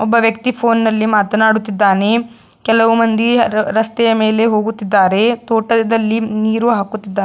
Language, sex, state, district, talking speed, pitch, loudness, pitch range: Kannada, female, Karnataka, Belgaum, 100 wpm, 225 Hz, -14 LUFS, 215-230 Hz